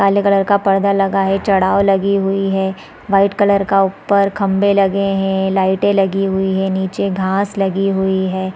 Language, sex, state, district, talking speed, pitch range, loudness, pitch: Hindi, female, Chhattisgarh, Raigarh, 190 wpm, 190-200 Hz, -15 LUFS, 195 Hz